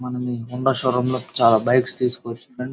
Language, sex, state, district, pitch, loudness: Telugu, male, Andhra Pradesh, Guntur, 125 Hz, -20 LUFS